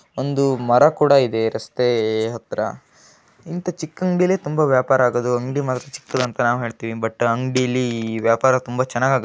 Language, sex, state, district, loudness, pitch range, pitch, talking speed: Kannada, male, Karnataka, Gulbarga, -20 LUFS, 120-140 Hz, 130 Hz, 160 wpm